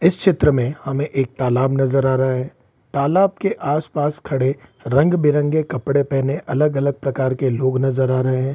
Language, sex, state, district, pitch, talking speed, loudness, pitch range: Hindi, male, Bihar, Saran, 135 Hz, 175 wpm, -19 LUFS, 130-150 Hz